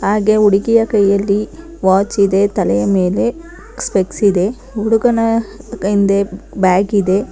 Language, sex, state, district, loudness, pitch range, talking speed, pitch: Kannada, female, Karnataka, Bangalore, -14 LUFS, 195-225 Hz, 105 wpm, 200 Hz